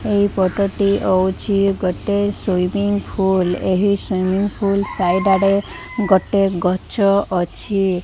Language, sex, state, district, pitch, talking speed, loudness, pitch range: Odia, female, Odisha, Malkangiri, 195 Hz, 105 wpm, -18 LUFS, 185-200 Hz